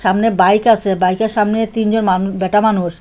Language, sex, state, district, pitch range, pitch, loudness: Bengali, female, Assam, Hailakandi, 185-220 Hz, 205 Hz, -14 LUFS